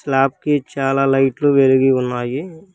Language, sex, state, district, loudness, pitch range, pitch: Telugu, male, Telangana, Hyderabad, -17 LUFS, 135-145 Hz, 135 Hz